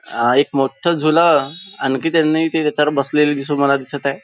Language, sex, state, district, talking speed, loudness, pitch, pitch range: Marathi, male, Maharashtra, Nagpur, 185 wpm, -16 LUFS, 145 Hz, 140-160 Hz